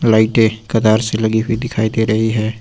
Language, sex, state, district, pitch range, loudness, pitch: Hindi, male, Uttar Pradesh, Lucknow, 110-115 Hz, -15 LUFS, 110 Hz